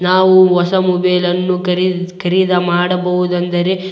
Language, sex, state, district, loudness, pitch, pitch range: Kannada, male, Karnataka, Raichur, -14 LUFS, 180 Hz, 180-185 Hz